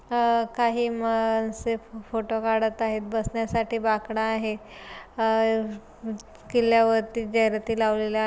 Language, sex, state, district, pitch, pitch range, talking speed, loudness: Marathi, female, Maharashtra, Pune, 225 Hz, 220-230 Hz, 100 wpm, -25 LUFS